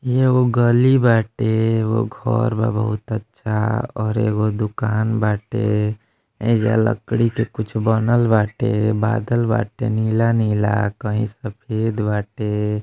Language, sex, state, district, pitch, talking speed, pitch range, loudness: Bhojpuri, male, Uttar Pradesh, Deoria, 110 Hz, 120 wpm, 105-115 Hz, -19 LUFS